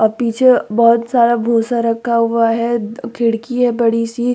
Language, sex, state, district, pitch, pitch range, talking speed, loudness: Hindi, female, Uttar Pradesh, Muzaffarnagar, 235 Hz, 230-240 Hz, 165 wpm, -15 LUFS